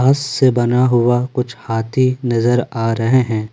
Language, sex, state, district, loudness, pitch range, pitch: Hindi, male, Jharkhand, Ranchi, -16 LUFS, 115-130 Hz, 120 Hz